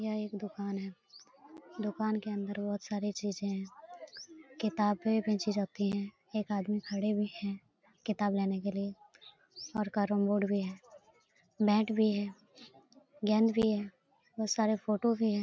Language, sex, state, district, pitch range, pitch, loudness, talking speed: Hindi, female, Bihar, Lakhisarai, 200-220 Hz, 210 Hz, -33 LUFS, 155 wpm